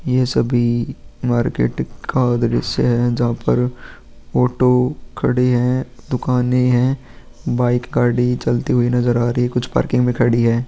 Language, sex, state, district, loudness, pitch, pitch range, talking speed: Hindi, male, Bihar, Vaishali, -18 LUFS, 125 Hz, 120-125 Hz, 145 wpm